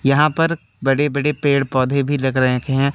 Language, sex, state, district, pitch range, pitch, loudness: Hindi, male, Madhya Pradesh, Katni, 135-145 Hz, 140 Hz, -18 LUFS